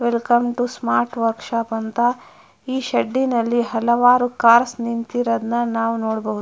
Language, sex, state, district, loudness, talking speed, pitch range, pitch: Kannada, female, Karnataka, Mysore, -19 LUFS, 120 wpm, 230-245 Hz, 235 Hz